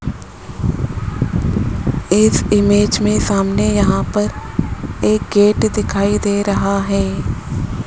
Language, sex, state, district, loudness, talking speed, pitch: Hindi, male, Rajasthan, Jaipur, -16 LUFS, 90 wpm, 155 Hz